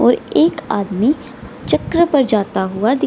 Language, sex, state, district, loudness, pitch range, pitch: Hindi, female, Bihar, Gaya, -16 LUFS, 200-290 Hz, 235 Hz